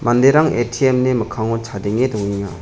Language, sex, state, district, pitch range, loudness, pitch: Garo, male, Meghalaya, West Garo Hills, 105-130 Hz, -17 LUFS, 120 Hz